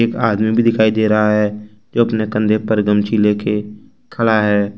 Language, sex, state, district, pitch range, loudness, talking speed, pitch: Hindi, male, Jharkhand, Ranchi, 105-110 Hz, -16 LUFS, 175 wpm, 105 Hz